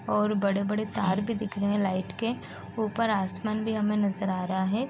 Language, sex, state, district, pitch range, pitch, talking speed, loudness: Hindi, female, Uttar Pradesh, Deoria, 195-215 Hz, 210 Hz, 220 wpm, -28 LUFS